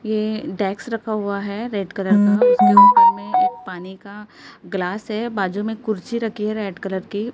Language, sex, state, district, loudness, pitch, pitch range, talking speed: Hindi, female, Maharashtra, Gondia, -19 LUFS, 210 Hz, 195-230 Hz, 195 wpm